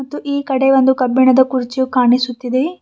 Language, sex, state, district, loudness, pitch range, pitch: Kannada, female, Karnataka, Bidar, -14 LUFS, 255-270 Hz, 260 Hz